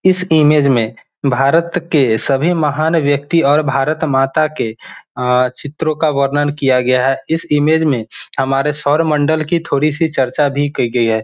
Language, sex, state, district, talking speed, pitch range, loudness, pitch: Hindi, male, Bihar, Vaishali, 160 wpm, 135-155 Hz, -15 LUFS, 145 Hz